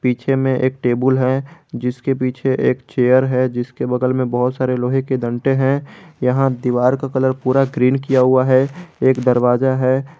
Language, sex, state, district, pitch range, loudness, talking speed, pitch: Hindi, male, Jharkhand, Garhwa, 125-135 Hz, -17 LUFS, 180 wpm, 130 Hz